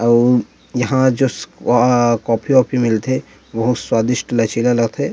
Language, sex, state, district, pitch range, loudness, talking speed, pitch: Chhattisgarhi, male, Chhattisgarh, Rajnandgaon, 115-130 Hz, -16 LUFS, 150 wpm, 125 Hz